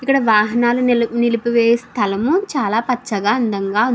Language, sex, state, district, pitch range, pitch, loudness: Telugu, female, Andhra Pradesh, Krishna, 215-250 Hz, 235 Hz, -17 LUFS